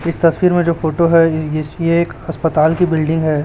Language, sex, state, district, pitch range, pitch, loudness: Hindi, male, Chhattisgarh, Raipur, 155-170 Hz, 165 Hz, -15 LUFS